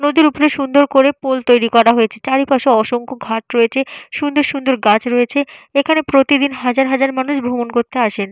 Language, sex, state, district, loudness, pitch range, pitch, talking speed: Bengali, female, Jharkhand, Jamtara, -15 LUFS, 240-285 Hz, 265 Hz, 175 wpm